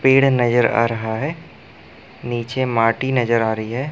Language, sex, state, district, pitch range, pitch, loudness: Hindi, male, Chhattisgarh, Bastar, 115-130 Hz, 120 Hz, -19 LUFS